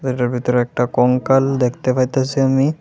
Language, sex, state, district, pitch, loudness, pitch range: Bengali, male, Tripura, West Tripura, 130 Hz, -17 LUFS, 125-135 Hz